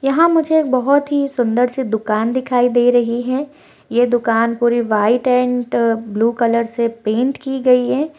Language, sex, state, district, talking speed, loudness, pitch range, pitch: Hindi, female, Bihar, Begusarai, 175 wpm, -16 LUFS, 235-265 Hz, 245 Hz